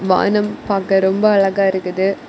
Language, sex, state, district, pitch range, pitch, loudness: Tamil, female, Tamil Nadu, Kanyakumari, 190-200 Hz, 195 Hz, -16 LUFS